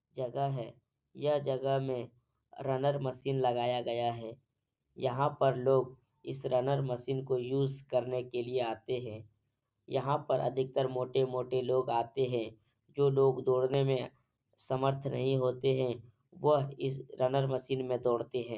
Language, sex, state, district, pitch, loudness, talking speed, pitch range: Hindi, male, Bihar, Supaul, 130 Hz, -33 LUFS, 145 wpm, 125-135 Hz